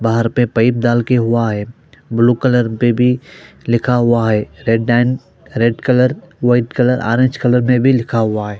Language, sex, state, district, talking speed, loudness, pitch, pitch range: Hindi, male, Haryana, Jhajjar, 190 wpm, -15 LUFS, 120 Hz, 115-125 Hz